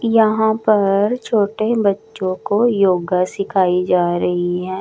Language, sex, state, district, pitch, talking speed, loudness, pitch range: Hindi, female, Chandigarh, Chandigarh, 200 Hz, 125 wpm, -17 LUFS, 185-220 Hz